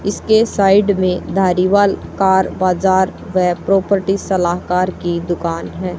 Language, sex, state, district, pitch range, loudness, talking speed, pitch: Hindi, female, Haryana, Charkhi Dadri, 180-195 Hz, -15 LUFS, 130 wpm, 190 Hz